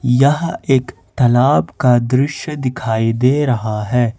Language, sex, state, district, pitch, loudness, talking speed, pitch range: Hindi, male, Jharkhand, Ranchi, 125 Hz, -16 LUFS, 130 wpm, 120-140 Hz